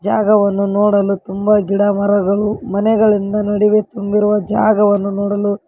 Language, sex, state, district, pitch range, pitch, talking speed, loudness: Kannada, female, Karnataka, Koppal, 200-210 Hz, 205 Hz, 105 wpm, -15 LUFS